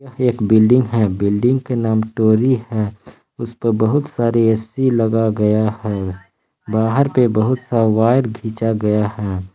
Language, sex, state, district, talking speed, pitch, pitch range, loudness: Hindi, male, Jharkhand, Palamu, 145 wpm, 110 Hz, 110-125 Hz, -17 LUFS